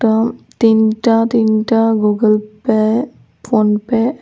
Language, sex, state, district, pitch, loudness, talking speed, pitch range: Bengali, female, Tripura, West Tripura, 225 Hz, -14 LUFS, 85 wpm, 215-230 Hz